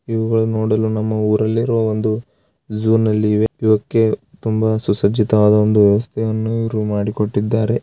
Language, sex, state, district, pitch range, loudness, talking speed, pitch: Kannada, male, Karnataka, Raichur, 105-110 Hz, -17 LUFS, 125 wpm, 110 Hz